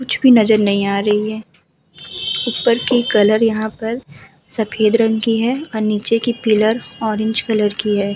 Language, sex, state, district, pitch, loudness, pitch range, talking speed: Hindi, female, Uttar Pradesh, Muzaffarnagar, 220 Hz, -16 LUFS, 210-230 Hz, 175 wpm